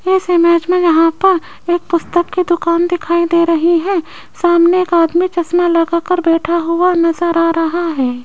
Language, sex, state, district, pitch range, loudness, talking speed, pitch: Hindi, female, Rajasthan, Jaipur, 335-355 Hz, -13 LUFS, 180 wpm, 340 Hz